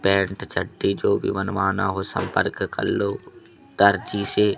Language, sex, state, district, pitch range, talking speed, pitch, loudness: Hindi, male, Madhya Pradesh, Katni, 95-100 Hz, 145 wpm, 100 Hz, -23 LUFS